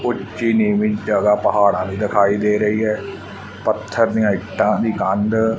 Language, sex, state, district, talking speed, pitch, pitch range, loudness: Punjabi, male, Punjab, Fazilka, 150 wpm, 105 Hz, 100-110 Hz, -18 LUFS